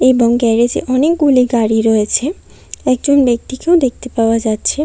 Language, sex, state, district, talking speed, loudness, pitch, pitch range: Bengali, female, West Bengal, Kolkata, 135 wpm, -13 LUFS, 250 Hz, 230-275 Hz